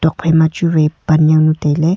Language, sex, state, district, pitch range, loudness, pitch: Wancho, female, Arunachal Pradesh, Longding, 155-160 Hz, -13 LUFS, 160 Hz